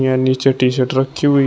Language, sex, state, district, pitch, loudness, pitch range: Hindi, male, Uttar Pradesh, Shamli, 130 Hz, -16 LUFS, 130-135 Hz